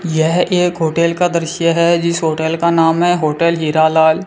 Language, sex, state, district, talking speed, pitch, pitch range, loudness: Hindi, male, Rajasthan, Bikaner, 210 wpm, 170 Hz, 160-170 Hz, -14 LUFS